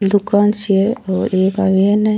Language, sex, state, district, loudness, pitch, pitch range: Rajasthani, female, Rajasthan, Churu, -15 LUFS, 200 Hz, 195-210 Hz